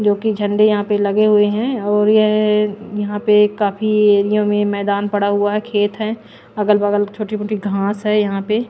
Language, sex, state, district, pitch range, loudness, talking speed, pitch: Hindi, female, Bihar, Kaimur, 205-215 Hz, -16 LUFS, 185 wpm, 210 Hz